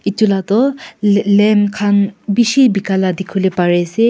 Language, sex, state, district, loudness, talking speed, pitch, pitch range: Nagamese, female, Nagaland, Kohima, -14 LUFS, 190 wpm, 205 Hz, 195-215 Hz